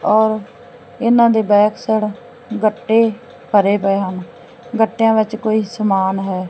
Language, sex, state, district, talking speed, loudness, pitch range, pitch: Punjabi, female, Punjab, Fazilka, 130 wpm, -16 LUFS, 205-235 Hz, 220 Hz